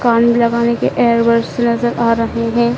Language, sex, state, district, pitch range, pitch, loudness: Hindi, female, Madhya Pradesh, Dhar, 230-235 Hz, 235 Hz, -14 LUFS